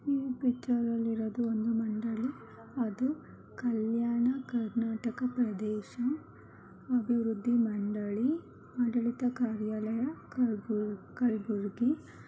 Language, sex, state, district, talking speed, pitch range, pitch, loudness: Kannada, male, Karnataka, Gulbarga, 70 wpm, 220-250 Hz, 235 Hz, -33 LUFS